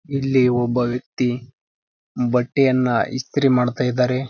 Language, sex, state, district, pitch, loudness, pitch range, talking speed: Kannada, male, Karnataka, Raichur, 125 Hz, -20 LUFS, 125-130 Hz, 95 wpm